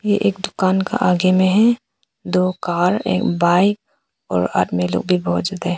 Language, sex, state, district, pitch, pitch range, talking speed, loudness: Hindi, female, Arunachal Pradesh, Papum Pare, 185 Hz, 170-205 Hz, 175 wpm, -18 LUFS